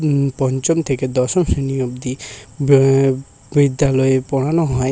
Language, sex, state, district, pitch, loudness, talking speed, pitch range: Bengali, male, West Bengal, Paschim Medinipur, 135 Hz, -17 LUFS, 120 wpm, 130-140 Hz